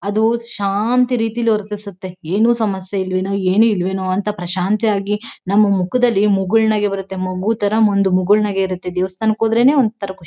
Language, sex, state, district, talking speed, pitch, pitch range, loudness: Kannada, female, Karnataka, Mysore, 145 wpm, 205 Hz, 190-220 Hz, -17 LUFS